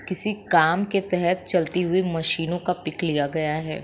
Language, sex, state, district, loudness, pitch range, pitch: Hindi, female, Uttar Pradesh, Muzaffarnagar, -23 LUFS, 160-180 Hz, 175 Hz